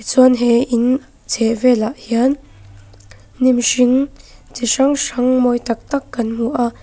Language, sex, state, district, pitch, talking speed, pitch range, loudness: Mizo, female, Mizoram, Aizawl, 245 Hz, 150 wpm, 230-255 Hz, -16 LUFS